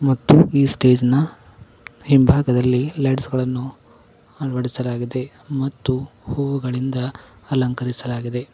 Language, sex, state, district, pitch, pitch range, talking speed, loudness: Kannada, male, Karnataka, Koppal, 130 Hz, 125-135 Hz, 75 wpm, -20 LUFS